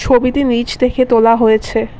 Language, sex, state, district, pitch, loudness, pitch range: Bengali, female, Assam, Kamrup Metropolitan, 240 Hz, -13 LUFS, 230-255 Hz